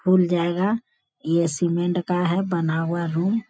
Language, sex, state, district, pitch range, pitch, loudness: Hindi, female, Bihar, Bhagalpur, 170-190 Hz, 175 Hz, -23 LUFS